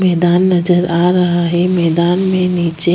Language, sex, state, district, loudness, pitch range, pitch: Hindi, female, Chhattisgarh, Bastar, -13 LUFS, 175-180 Hz, 175 Hz